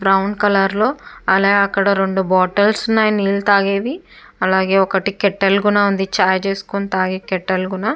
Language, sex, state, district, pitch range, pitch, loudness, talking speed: Telugu, female, Andhra Pradesh, Chittoor, 190-205 Hz, 195 Hz, -16 LUFS, 150 wpm